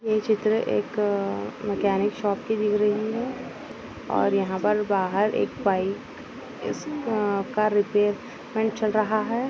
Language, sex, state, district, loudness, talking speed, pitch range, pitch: Hindi, female, Chhattisgarh, Balrampur, -25 LUFS, 135 wpm, 200-220 Hz, 210 Hz